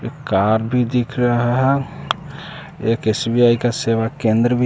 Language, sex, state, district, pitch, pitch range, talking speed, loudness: Hindi, male, Bihar, West Champaran, 120 Hz, 115-135 Hz, 155 wpm, -18 LUFS